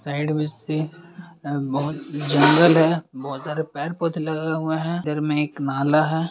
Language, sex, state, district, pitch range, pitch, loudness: Hindi, male, Bihar, Bhagalpur, 145-160 Hz, 155 Hz, -22 LUFS